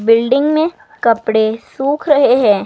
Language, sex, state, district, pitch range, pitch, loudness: Hindi, female, Himachal Pradesh, Shimla, 220-295 Hz, 255 Hz, -14 LUFS